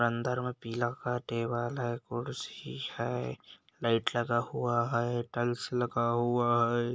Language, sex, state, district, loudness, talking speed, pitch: Hindi, male, Bihar, Bhagalpur, -32 LUFS, 140 wpm, 120 Hz